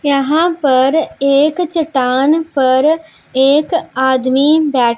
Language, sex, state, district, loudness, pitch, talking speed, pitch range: Hindi, female, Punjab, Pathankot, -13 LUFS, 280 Hz, 95 wpm, 260-320 Hz